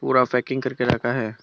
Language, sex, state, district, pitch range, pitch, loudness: Hindi, male, Tripura, Dhalai, 120-130 Hz, 125 Hz, -22 LUFS